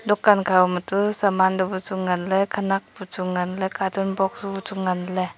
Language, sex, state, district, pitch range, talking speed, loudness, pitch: Wancho, female, Arunachal Pradesh, Longding, 185-195 Hz, 165 wpm, -22 LUFS, 190 Hz